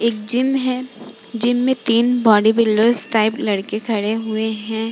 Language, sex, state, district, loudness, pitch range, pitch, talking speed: Hindi, female, Bihar, Vaishali, -18 LUFS, 220-240 Hz, 225 Hz, 160 wpm